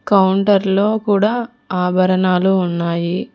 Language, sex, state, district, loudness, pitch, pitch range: Telugu, female, Telangana, Hyderabad, -16 LUFS, 190 Hz, 185-205 Hz